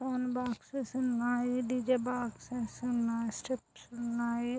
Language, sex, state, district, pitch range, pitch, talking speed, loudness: Telugu, female, Andhra Pradesh, Anantapur, 235-250 Hz, 245 Hz, 105 wpm, -34 LUFS